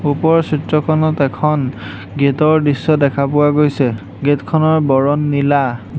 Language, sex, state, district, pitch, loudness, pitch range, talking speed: Assamese, male, Assam, Hailakandi, 145 Hz, -15 LUFS, 140-155 Hz, 130 wpm